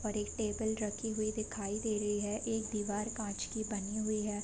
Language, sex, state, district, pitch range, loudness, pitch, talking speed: Hindi, female, Bihar, Sitamarhi, 210-220 Hz, -36 LUFS, 215 Hz, 215 wpm